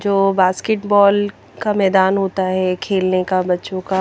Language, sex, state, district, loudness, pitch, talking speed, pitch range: Hindi, female, Chandigarh, Chandigarh, -17 LUFS, 190 Hz, 180 wpm, 185-200 Hz